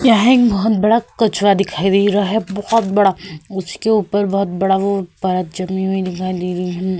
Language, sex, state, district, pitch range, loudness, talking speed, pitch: Hindi, female, Uttar Pradesh, Hamirpur, 185-210 Hz, -16 LUFS, 190 wpm, 195 Hz